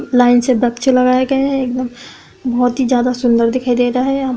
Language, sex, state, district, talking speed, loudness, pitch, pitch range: Hindi, female, Uttar Pradesh, Budaun, 190 wpm, -14 LUFS, 250 Hz, 245-255 Hz